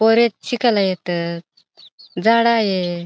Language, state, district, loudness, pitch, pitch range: Bhili, Maharashtra, Dhule, -18 LUFS, 200 Hz, 175-230 Hz